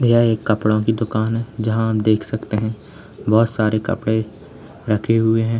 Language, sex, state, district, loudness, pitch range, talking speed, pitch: Hindi, male, Uttar Pradesh, Lalitpur, -19 LUFS, 110-115 Hz, 180 wpm, 110 Hz